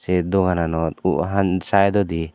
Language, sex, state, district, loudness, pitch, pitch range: Chakma, male, Tripura, Dhalai, -20 LUFS, 90 Hz, 80-100 Hz